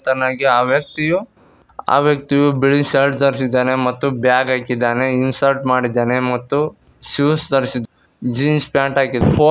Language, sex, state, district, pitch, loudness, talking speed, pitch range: Kannada, male, Karnataka, Koppal, 135 Hz, -16 LUFS, 130 wpm, 125-140 Hz